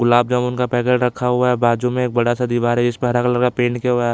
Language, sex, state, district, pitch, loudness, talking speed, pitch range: Hindi, male, Chhattisgarh, Bilaspur, 125 Hz, -18 LUFS, 330 wpm, 120-125 Hz